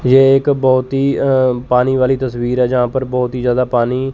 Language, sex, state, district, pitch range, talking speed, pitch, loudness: Hindi, male, Chandigarh, Chandigarh, 125-135 Hz, 215 wpm, 130 Hz, -14 LUFS